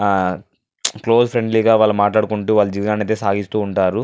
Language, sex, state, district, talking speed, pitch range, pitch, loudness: Telugu, male, Andhra Pradesh, Anantapur, 150 wpm, 100-110 Hz, 105 Hz, -17 LUFS